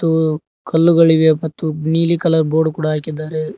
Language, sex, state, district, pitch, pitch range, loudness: Kannada, male, Karnataka, Koppal, 160 Hz, 155-165 Hz, -16 LUFS